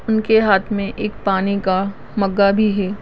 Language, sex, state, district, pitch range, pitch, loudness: Hindi, male, Maharashtra, Sindhudurg, 195-215 Hz, 200 Hz, -18 LUFS